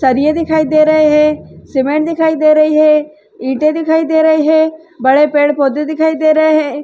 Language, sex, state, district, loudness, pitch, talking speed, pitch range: Hindi, female, Uttar Pradesh, Varanasi, -12 LUFS, 310 Hz, 185 wpm, 295-315 Hz